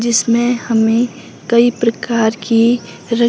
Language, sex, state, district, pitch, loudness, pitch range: Hindi, female, Himachal Pradesh, Shimla, 235 Hz, -15 LUFS, 230-240 Hz